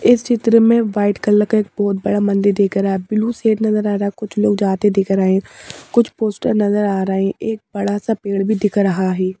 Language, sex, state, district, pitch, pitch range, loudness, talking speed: Hindi, female, Madhya Pradesh, Bhopal, 205 Hz, 195-215 Hz, -17 LUFS, 235 wpm